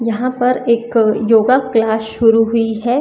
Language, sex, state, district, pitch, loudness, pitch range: Hindi, female, Maharashtra, Chandrapur, 230 Hz, -14 LUFS, 225-245 Hz